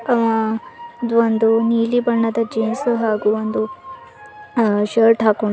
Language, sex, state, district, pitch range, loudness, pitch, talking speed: Kannada, female, Karnataka, Bidar, 220-240 Hz, -18 LUFS, 230 Hz, 120 wpm